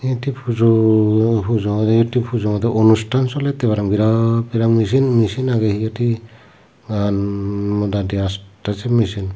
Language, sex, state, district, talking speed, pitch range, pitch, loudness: Chakma, male, Tripura, Unakoti, 135 wpm, 105-120 Hz, 110 Hz, -17 LUFS